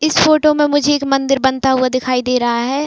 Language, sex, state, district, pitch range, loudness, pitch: Hindi, female, Uttar Pradesh, Jalaun, 255-295 Hz, -14 LUFS, 270 Hz